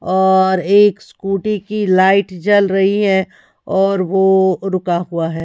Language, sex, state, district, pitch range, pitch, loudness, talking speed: Hindi, female, Haryana, Rohtak, 185-200 Hz, 190 Hz, -14 LUFS, 145 wpm